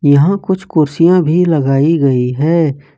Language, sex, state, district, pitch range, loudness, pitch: Hindi, male, Jharkhand, Ranchi, 140-175 Hz, -12 LUFS, 155 Hz